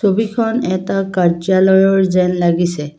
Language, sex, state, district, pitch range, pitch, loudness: Assamese, female, Assam, Kamrup Metropolitan, 175-195 Hz, 185 Hz, -14 LUFS